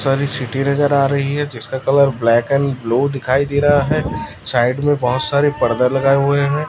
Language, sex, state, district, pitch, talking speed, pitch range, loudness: Hindi, male, Chhattisgarh, Raipur, 140 Hz, 200 wpm, 130-140 Hz, -16 LUFS